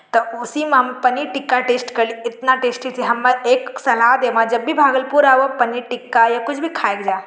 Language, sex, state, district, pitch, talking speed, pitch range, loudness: Angika, female, Bihar, Bhagalpur, 250 Hz, 230 wpm, 235-260 Hz, -17 LUFS